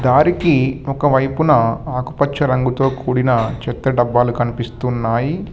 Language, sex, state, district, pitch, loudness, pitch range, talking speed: Telugu, male, Telangana, Hyderabad, 130 Hz, -17 LUFS, 120-140 Hz, 100 wpm